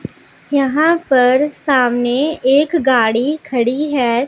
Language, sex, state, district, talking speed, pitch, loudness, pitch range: Hindi, female, Punjab, Pathankot, 100 wpm, 265 Hz, -15 LUFS, 245-295 Hz